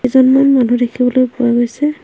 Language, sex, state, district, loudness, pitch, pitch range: Assamese, female, Assam, Hailakandi, -12 LUFS, 255 Hz, 245-265 Hz